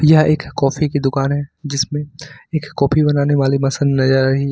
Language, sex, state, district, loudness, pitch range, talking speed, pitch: Hindi, male, Jharkhand, Ranchi, -17 LUFS, 135-150 Hz, 210 wpm, 140 Hz